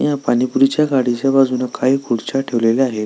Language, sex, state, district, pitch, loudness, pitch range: Marathi, male, Maharashtra, Solapur, 130 Hz, -16 LUFS, 120-135 Hz